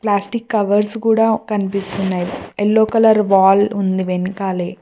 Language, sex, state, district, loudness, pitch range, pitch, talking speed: Telugu, female, Telangana, Mahabubabad, -16 LUFS, 190-220 Hz, 205 Hz, 110 wpm